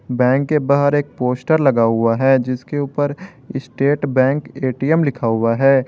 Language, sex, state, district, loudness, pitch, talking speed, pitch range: Hindi, male, Jharkhand, Garhwa, -17 LUFS, 135 Hz, 165 wpm, 125-145 Hz